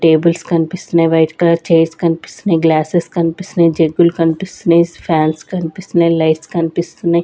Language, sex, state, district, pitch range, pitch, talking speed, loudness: Telugu, female, Andhra Pradesh, Sri Satya Sai, 165-175 Hz, 170 Hz, 125 wpm, -14 LUFS